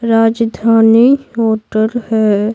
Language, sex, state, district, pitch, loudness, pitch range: Hindi, female, Bihar, Patna, 225 Hz, -12 LUFS, 220-230 Hz